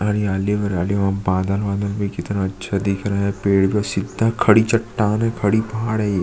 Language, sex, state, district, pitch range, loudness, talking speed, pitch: Hindi, male, Chhattisgarh, Sukma, 100-105 Hz, -20 LUFS, 190 wpm, 100 Hz